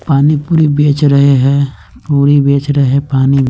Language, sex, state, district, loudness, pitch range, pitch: Hindi, male, Bihar, West Champaran, -11 LUFS, 135-145 Hz, 140 Hz